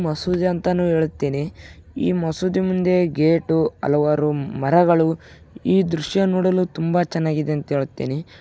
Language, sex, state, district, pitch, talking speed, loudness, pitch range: Kannada, male, Karnataka, Raichur, 165 Hz, 115 wpm, -20 LUFS, 150-180 Hz